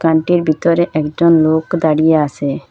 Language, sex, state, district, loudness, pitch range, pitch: Bengali, female, Assam, Hailakandi, -14 LUFS, 155-170 Hz, 160 Hz